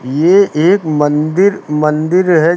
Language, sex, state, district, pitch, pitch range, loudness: Hindi, male, Uttar Pradesh, Lucknow, 160 Hz, 150-185 Hz, -12 LUFS